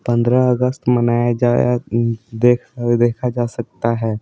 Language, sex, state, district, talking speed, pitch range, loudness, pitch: Hindi, male, Bihar, Patna, 155 wpm, 115-120 Hz, -17 LUFS, 120 Hz